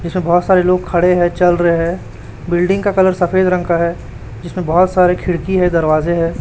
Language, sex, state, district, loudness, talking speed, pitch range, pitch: Hindi, male, Chhattisgarh, Raipur, -14 LUFS, 215 wpm, 170-180 Hz, 175 Hz